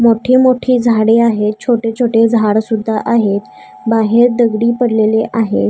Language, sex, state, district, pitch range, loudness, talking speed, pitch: Marathi, female, Maharashtra, Gondia, 215-235 Hz, -12 LUFS, 125 wpm, 225 Hz